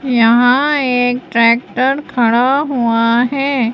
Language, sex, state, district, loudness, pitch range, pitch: Hindi, female, Madhya Pradesh, Bhopal, -13 LUFS, 235-270 Hz, 245 Hz